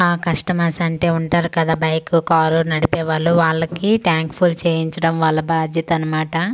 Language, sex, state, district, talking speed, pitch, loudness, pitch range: Telugu, female, Andhra Pradesh, Manyam, 155 wpm, 165 Hz, -18 LUFS, 160-170 Hz